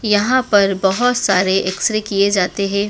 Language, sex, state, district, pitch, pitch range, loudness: Hindi, female, Madhya Pradesh, Dhar, 200 Hz, 195-215 Hz, -16 LUFS